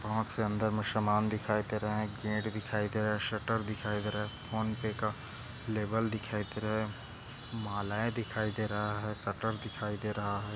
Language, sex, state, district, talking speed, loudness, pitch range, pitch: Hindi, male, Maharashtra, Chandrapur, 200 wpm, -34 LUFS, 105-110 Hz, 110 Hz